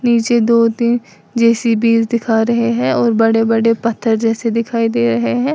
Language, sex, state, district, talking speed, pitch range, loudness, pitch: Hindi, female, Uttar Pradesh, Lalitpur, 175 wpm, 225-235 Hz, -14 LUFS, 230 Hz